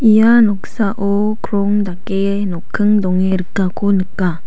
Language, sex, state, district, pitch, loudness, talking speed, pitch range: Garo, female, Meghalaya, South Garo Hills, 200 Hz, -16 LUFS, 110 wpm, 190-210 Hz